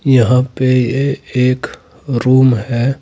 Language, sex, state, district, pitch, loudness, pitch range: Hindi, male, Uttar Pradesh, Saharanpur, 130 Hz, -14 LUFS, 125-135 Hz